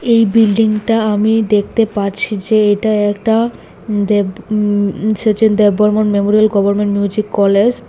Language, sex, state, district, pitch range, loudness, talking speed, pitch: Bengali, female, Tripura, West Tripura, 205-220 Hz, -13 LUFS, 135 wpm, 210 Hz